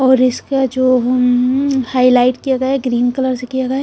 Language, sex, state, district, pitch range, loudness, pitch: Hindi, female, Punjab, Kapurthala, 250-265 Hz, -14 LUFS, 255 Hz